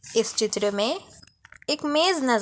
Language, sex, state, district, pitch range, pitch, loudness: Hindi, female, Chhattisgarh, Bastar, 215-300 Hz, 235 Hz, -24 LUFS